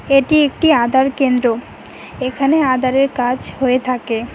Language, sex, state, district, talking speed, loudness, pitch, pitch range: Bengali, female, West Bengal, Cooch Behar, 140 wpm, -15 LUFS, 260 Hz, 250-275 Hz